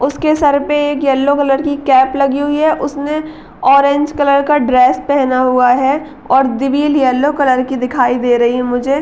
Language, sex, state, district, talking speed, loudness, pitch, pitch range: Hindi, female, Uttar Pradesh, Gorakhpur, 200 wpm, -13 LUFS, 275 Hz, 255-290 Hz